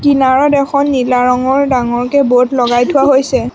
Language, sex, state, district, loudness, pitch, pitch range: Assamese, female, Assam, Sonitpur, -11 LUFS, 260 Hz, 250-280 Hz